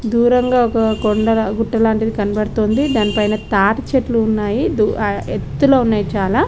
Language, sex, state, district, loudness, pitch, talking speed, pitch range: Telugu, female, Telangana, Karimnagar, -16 LUFS, 220 Hz, 130 wpm, 215-235 Hz